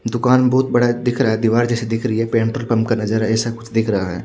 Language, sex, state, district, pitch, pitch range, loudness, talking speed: Hindi, male, Chhattisgarh, Raipur, 115 Hz, 110-120 Hz, -17 LUFS, 255 wpm